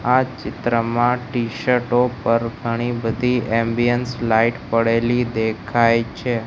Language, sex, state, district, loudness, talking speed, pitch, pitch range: Gujarati, male, Gujarat, Gandhinagar, -20 LUFS, 100 wpm, 120 Hz, 115-125 Hz